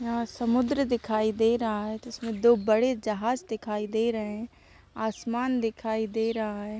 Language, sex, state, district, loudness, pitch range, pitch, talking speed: Hindi, female, Jharkhand, Sahebganj, -28 LUFS, 220-235 Hz, 225 Hz, 170 wpm